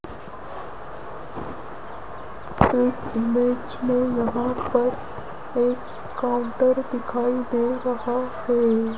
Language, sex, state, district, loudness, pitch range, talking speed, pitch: Hindi, female, Rajasthan, Jaipur, -23 LUFS, 240-250 Hz, 75 wpm, 245 Hz